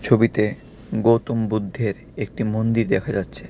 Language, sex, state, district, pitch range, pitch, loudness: Bengali, male, Tripura, West Tripura, 105-115 Hz, 110 Hz, -22 LUFS